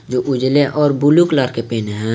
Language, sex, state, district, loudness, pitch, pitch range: Hindi, male, Jharkhand, Garhwa, -15 LUFS, 130 Hz, 115-145 Hz